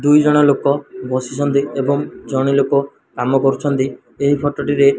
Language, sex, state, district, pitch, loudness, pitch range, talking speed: Odia, male, Odisha, Malkangiri, 140 Hz, -17 LUFS, 135-145 Hz, 145 wpm